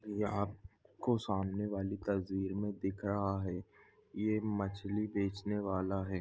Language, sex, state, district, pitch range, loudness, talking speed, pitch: Hindi, male, Goa, North and South Goa, 95-105 Hz, -37 LUFS, 135 wpm, 100 Hz